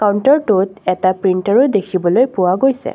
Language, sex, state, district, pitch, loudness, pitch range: Assamese, female, Assam, Kamrup Metropolitan, 195 Hz, -14 LUFS, 185-225 Hz